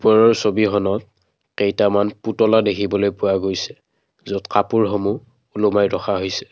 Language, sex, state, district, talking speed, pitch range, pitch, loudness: Assamese, male, Assam, Kamrup Metropolitan, 110 wpm, 100-110 Hz, 105 Hz, -19 LUFS